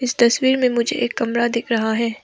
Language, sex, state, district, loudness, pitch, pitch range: Hindi, female, Arunachal Pradesh, Papum Pare, -19 LUFS, 235 Hz, 230-250 Hz